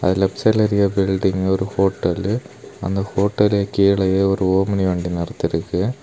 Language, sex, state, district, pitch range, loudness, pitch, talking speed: Tamil, male, Tamil Nadu, Kanyakumari, 95-100 Hz, -19 LUFS, 95 Hz, 150 wpm